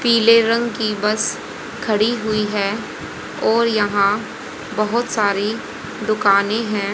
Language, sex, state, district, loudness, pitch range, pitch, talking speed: Hindi, female, Haryana, Rohtak, -18 LUFS, 205-230 Hz, 215 Hz, 110 wpm